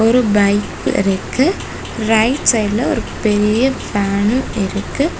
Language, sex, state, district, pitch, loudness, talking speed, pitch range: Tamil, female, Tamil Nadu, Kanyakumari, 220 Hz, -16 LUFS, 105 wpm, 205-250 Hz